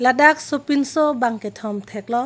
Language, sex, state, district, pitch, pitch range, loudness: Karbi, female, Assam, Karbi Anglong, 255 Hz, 215-295 Hz, -20 LUFS